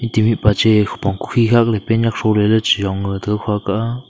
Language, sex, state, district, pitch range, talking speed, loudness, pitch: Wancho, male, Arunachal Pradesh, Longding, 105-115 Hz, 175 wpm, -16 LUFS, 110 Hz